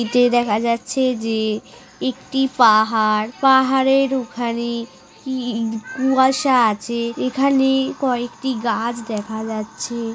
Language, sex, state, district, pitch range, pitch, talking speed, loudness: Bengali, female, West Bengal, North 24 Parganas, 225-265 Hz, 240 Hz, 95 wpm, -19 LUFS